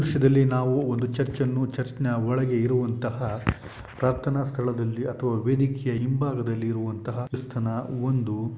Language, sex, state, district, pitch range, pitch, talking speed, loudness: Kannada, male, Karnataka, Shimoga, 115-130 Hz, 125 Hz, 120 wpm, -26 LUFS